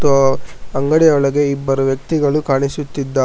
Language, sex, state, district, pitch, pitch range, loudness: Kannada, male, Karnataka, Bangalore, 140 Hz, 135-145 Hz, -16 LUFS